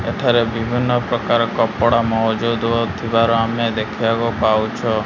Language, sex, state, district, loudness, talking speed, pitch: Odia, male, Odisha, Malkangiri, -18 LUFS, 105 wpm, 115 Hz